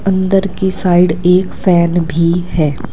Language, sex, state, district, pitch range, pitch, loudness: Hindi, male, Uttar Pradesh, Saharanpur, 170-190 Hz, 180 Hz, -13 LUFS